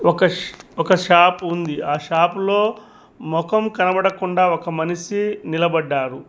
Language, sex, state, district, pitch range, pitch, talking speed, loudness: Telugu, male, Telangana, Mahabubabad, 165-195 Hz, 175 Hz, 105 wpm, -19 LUFS